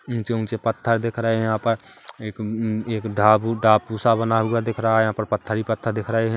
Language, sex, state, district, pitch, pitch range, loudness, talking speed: Hindi, male, Chhattisgarh, Kabirdham, 110 Hz, 110-115 Hz, -22 LUFS, 245 wpm